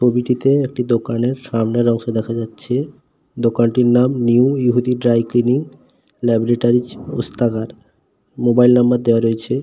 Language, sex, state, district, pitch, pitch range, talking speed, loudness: Bengali, male, West Bengal, Paschim Medinipur, 120 Hz, 115-125 Hz, 120 wpm, -17 LUFS